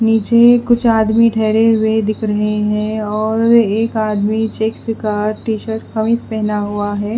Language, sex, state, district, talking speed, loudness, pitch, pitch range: Hindi, female, Bihar, West Champaran, 160 wpm, -15 LUFS, 220 Hz, 210-225 Hz